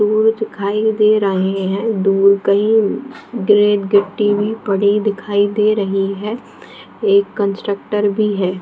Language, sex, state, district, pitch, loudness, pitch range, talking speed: Hindi, female, Bihar, Jahanabad, 205 Hz, -16 LUFS, 200-215 Hz, 120 wpm